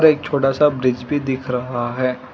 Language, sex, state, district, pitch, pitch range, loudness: Hindi, male, Telangana, Hyderabad, 130 Hz, 125-145 Hz, -19 LUFS